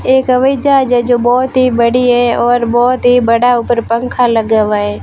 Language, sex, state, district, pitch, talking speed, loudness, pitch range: Hindi, female, Rajasthan, Barmer, 245 Hz, 215 wpm, -11 LUFS, 235-250 Hz